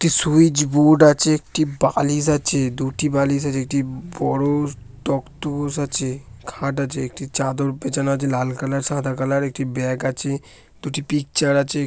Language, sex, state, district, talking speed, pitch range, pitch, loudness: Bengali, male, West Bengal, Malda, 160 wpm, 135-145 Hz, 140 Hz, -20 LUFS